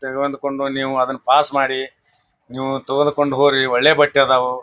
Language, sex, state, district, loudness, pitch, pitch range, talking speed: Kannada, male, Karnataka, Bijapur, -17 LUFS, 135 Hz, 130-140 Hz, 145 wpm